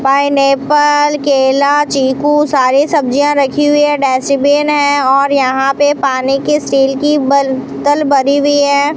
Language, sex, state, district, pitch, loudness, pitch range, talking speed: Hindi, female, Rajasthan, Bikaner, 280 Hz, -11 LUFS, 270-290 Hz, 140 wpm